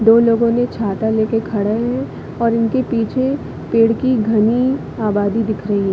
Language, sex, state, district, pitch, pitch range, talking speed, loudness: Hindi, female, Chhattisgarh, Bilaspur, 225 Hz, 215-235 Hz, 180 wpm, -17 LUFS